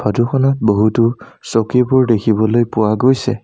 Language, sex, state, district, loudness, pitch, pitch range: Assamese, male, Assam, Sonitpur, -14 LUFS, 115 Hz, 110-125 Hz